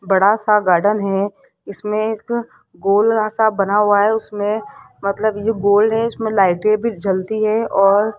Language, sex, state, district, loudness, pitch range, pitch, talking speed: Hindi, female, Rajasthan, Jaipur, -17 LUFS, 200-220 Hz, 210 Hz, 170 wpm